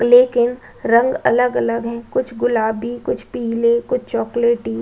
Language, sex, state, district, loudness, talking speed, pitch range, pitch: Hindi, female, Uttar Pradesh, Budaun, -18 LUFS, 135 wpm, 230-245 Hz, 235 Hz